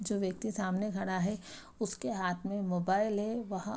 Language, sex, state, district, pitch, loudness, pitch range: Hindi, female, Bihar, Araria, 200 Hz, -34 LUFS, 190-215 Hz